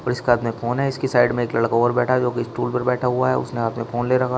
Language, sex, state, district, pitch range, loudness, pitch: Hindi, male, Uttar Pradesh, Shamli, 120-125 Hz, -21 LUFS, 120 Hz